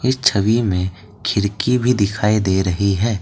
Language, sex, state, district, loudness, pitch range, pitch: Hindi, male, Assam, Kamrup Metropolitan, -18 LUFS, 95-115 Hz, 105 Hz